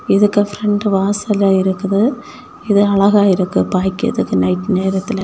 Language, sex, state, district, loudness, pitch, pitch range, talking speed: Tamil, female, Tamil Nadu, Kanyakumari, -15 LUFS, 200 Hz, 190-205 Hz, 115 wpm